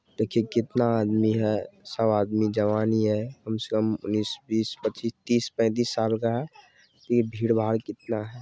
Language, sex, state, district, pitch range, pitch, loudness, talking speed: Maithili, male, Bihar, Supaul, 110-115 Hz, 110 Hz, -26 LUFS, 170 wpm